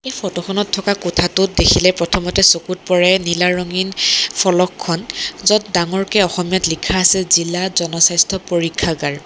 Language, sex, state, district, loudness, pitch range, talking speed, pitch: Assamese, female, Assam, Kamrup Metropolitan, -15 LUFS, 175-190 Hz, 125 wpm, 180 Hz